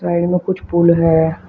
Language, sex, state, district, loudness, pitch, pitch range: Hindi, male, Uttar Pradesh, Shamli, -15 LUFS, 170 Hz, 165-180 Hz